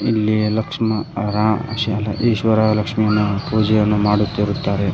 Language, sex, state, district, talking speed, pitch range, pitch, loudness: Kannada, male, Karnataka, Koppal, 95 wpm, 105-110 Hz, 105 Hz, -18 LUFS